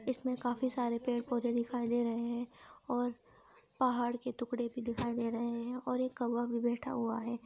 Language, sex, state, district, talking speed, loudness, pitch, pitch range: Hindi, female, Uttar Pradesh, Muzaffarnagar, 200 wpm, -36 LUFS, 240 Hz, 235-245 Hz